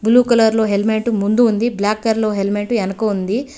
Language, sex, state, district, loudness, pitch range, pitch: Telugu, female, Telangana, Hyderabad, -16 LUFS, 205-230 Hz, 220 Hz